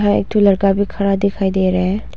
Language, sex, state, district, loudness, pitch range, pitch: Hindi, female, Arunachal Pradesh, Longding, -16 LUFS, 190-200 Hz, 195 Hz